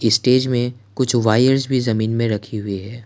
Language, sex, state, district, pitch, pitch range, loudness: Hindi, male, Assam, Kamrup Metropolitan, 115 Hz, 110-125 Hz, -18 LUFS